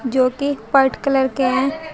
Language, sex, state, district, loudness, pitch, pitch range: Hindi, female, Uttar Pradesh, Shamli, -18 LUFS, 270 Hz, 260-280 Hz